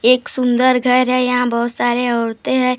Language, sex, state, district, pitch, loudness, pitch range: Hindi, female, Maharashtra, Gondia, 250 Hz, -16 LUFS, 240-255 Hz